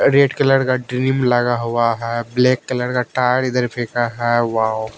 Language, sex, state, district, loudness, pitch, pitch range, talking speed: Hindi, male, Haryana, Jhajjar, -18 LUFS, 125 Hz, 120-130 Hz, 180 wpm